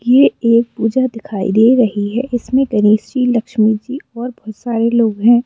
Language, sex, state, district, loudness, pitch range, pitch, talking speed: Hindi, female, Madhya Pradesh, Bhopal, -14 LUFS, 220-250 Hz, 235 Hz, 185 wpm